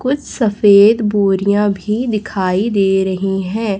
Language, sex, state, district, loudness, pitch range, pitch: Hindi, female, Chhattisgarh, Raipur, -14 LUFS, 195-220 Hz, 205 Hz